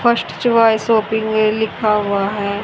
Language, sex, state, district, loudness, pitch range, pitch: Hindi, female, Haryana, Jhajjar, -16 LUFS, 210-225 Hz, 220 Hz